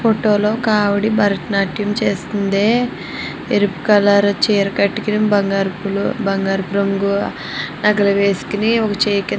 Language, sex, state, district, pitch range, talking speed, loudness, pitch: Telugu, female, Andhra Pradesh, Srikakulam, 200-210 Hz, 115 wpm, -17 LUFS, 205 Hz